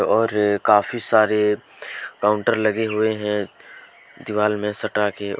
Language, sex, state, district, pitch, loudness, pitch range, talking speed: Hindi, male, Jharkhand, Deoghar, 105 Hz, -20 LUFS, 105-110 Hz, 135 wpm